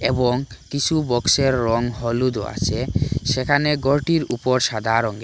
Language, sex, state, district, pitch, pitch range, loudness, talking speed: Bengali, male, Assam, Hailakandi, 125 Hz, 115-140 Hz, -20 LUFS, 125 wpm